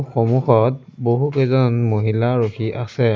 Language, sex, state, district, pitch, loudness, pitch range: Assamese, male, Assam, Sonitpur, 120 Hz, -18 LUFS, 115-130 Hz